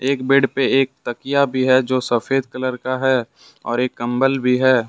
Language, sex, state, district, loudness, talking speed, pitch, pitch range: Hindi, male, Jharkhand, Deoghar, -18 LUFS, 210 wpm, 130 Hz, 125-135 Hz